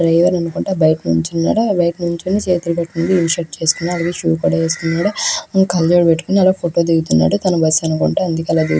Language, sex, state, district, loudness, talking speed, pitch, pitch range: Telugu, female, Andhra Pradesh, Krishna, -16 LUFS, 110 wpm, 170 Hz, 165-180 Hz